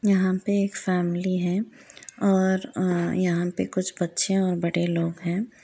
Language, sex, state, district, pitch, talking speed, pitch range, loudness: Hindi, female, Uttar Pradesh, Varanasi, 185 Hz, 160 wpm, 175-195 Hz, -25 LUFS